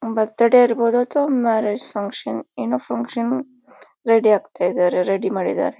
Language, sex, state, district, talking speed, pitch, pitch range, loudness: Kannada, female, Karnataka, Bijapur, 135 wpm, 230 Hz, 205-245 Hz, -19 LUFS